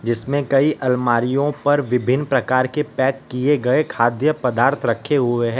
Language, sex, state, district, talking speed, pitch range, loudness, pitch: Hindi, male, Gujarat, Valsad, 160 wpm, 120-145 Hz, -19 LUFS, 130 Hz